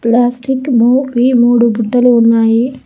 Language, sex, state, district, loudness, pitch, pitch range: Telugu, female, Telangana, Hyderabad, -11 LUFS, 240 Hz, 230-255 Hz